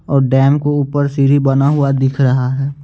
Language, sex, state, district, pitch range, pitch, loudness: Hindi, male, Bihar, West Champaran, 135-145 Hz, 140 Hz, -14 LUFS